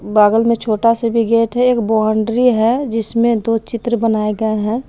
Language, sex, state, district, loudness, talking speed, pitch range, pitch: Hindi, female, Jharkhand, Palamu, -15 LUFS, 195 wpm, 220-235 Hz, 230 Hz